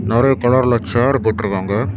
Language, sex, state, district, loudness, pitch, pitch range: Tamil, male, Tamil Nadu, Kanyakumari, -16 LUFS, 115 Hz, 105-125 Hz